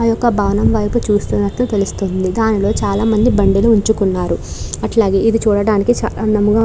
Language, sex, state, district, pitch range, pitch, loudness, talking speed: Telugu, female, Andhra Pradesh, Krishna, 200-225 Hz, 210 Hz, -15 LUFS, 145 wpm